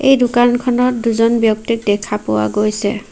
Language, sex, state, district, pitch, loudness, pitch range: Assamese, female, Assam, Sonitpur, 230 Hz, -15 LUFS, 210-245 Hz